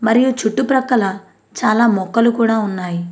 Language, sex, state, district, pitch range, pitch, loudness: Telugu, female, Andhra Pradesh, Anantapur, 195-245 Hz, 225 Hz, -16 LUFS